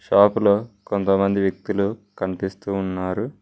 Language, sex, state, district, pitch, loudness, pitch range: Telugu, male, Telangana, Mahabubabad, 100 Hz, -22 LUFS, 95-105 Hz